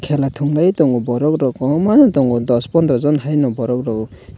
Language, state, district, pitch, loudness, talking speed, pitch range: Kokborok, Tripura, West Tripura, 135 Hz, -16 LUFS, 135 wpm, 120-150 Hz